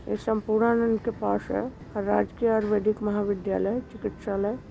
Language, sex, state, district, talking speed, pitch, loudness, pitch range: Awadhi, female, Uttar Pradesh, Varanasi, 125 wpm, 215 Hz, -27 LUFS, 200-225 Hz